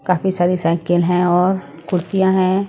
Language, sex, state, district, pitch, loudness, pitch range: Hindi, female, Punjab, Pathankot, 180 Hz, -17 LUFS, 175-190 Hz